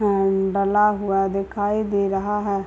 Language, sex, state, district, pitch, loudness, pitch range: Hindi, male, Bihar, Muzaffarpur, 200 Hz, -21 LUFS, 195-205 Hz